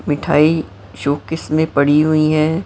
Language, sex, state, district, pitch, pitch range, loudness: Hindi, female, Maharashtra, Mumbai Suburban, 155 Hz, 145-160 Hz, -16 LUFS